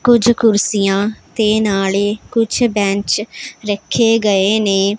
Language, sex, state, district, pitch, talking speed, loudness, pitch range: Punjabi, female, Punjab, Pathankot, 210 Hz, 110 wpm, -15 LUFS, 200-225 Hz